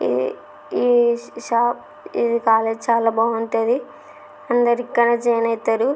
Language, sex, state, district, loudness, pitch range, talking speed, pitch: Telugu, female, Andhra Pradesh, Srikakulam, -19 LUFS, 225-240 Hz, 100 wpm, 235 Hz